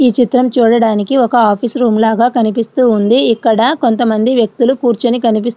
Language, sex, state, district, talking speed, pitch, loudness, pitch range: Telugu, female, Andhra Pradesh, Srikakulam, 150 wpm, 235 Hz, -12 LUFS, 225-250 Hz